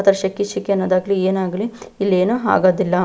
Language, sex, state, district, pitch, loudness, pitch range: Kannada, female, Karnataka, Belgaum, 195 Hz, -18 LUFS, 185-200 Hz